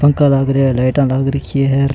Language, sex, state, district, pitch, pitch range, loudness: Rajasthani, male, Rajasthan, Churu, 135 Hz, 135-140 Hz, -14 LUFS